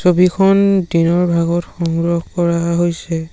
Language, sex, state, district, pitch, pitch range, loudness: Assamese, male, Assam, Sonitpur, 170 Hz, 170-180 Hz, -15 LUFS